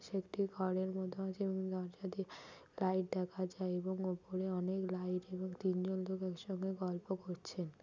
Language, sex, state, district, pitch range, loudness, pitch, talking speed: Bengali, female, West Bengal, Malda, 185-190 Hz, -40 LUFS, 185 Hz, 160 wpm